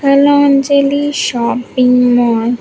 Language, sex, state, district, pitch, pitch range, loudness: English, female, Andhra Pradesh, Sri Satya Sai, 255 Hz, 245-280 Hz, -11 LUFS